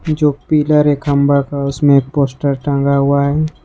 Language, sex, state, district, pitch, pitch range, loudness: Hindi, male, Jharkhand, Ranchi, 140 Hz, 140-150 Hz, -14 LUFS